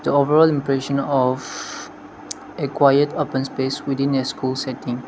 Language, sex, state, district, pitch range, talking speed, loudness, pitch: English, male, Nagaland, Dimapur, 130-140 Hz, 130 wpm, -20 LUFS, 135 Hz